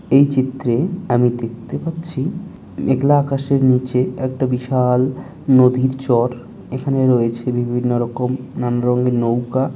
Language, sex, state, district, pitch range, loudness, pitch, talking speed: Bengali, male, West Bengal, Dakshin Dinajpur, 120-135 Hz, -18 LUFS, 130 Hz, 115 wpm